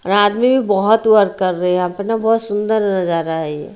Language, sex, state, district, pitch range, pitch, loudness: Hindi, female, Haryana, Rohtak, 180-220 Hz, 205 Hz, -16 LUFS